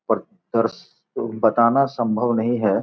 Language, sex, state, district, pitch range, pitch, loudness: Hindi, male, Bihar, Gopalganj, 110-120 Hz, 115 Hz, -21 LUFS